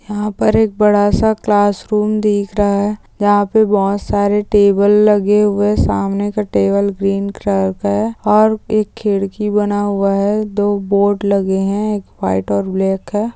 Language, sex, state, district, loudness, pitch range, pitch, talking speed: Hindi, female, West Bengal, Dakshin Dinajpur, -15 LUFS, 200-210 Hz, 205 Hz, 170 wpm